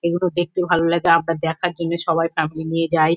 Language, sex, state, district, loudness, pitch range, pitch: Bengali, female, West Bengal, Kolkata, -20 LUFS, 165-170 Hz, 165 Hz